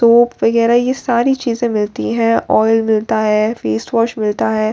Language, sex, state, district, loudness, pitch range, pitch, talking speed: Hindi, female, Bihar, Katihar, -15 LUFS, 210-235 Hz, 225 Hz, 190 wpm